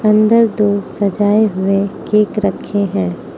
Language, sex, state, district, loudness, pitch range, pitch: Hindi, female, Mizoram, Aizawl, -15 LUFS, 195-215 Hz, 205 Hz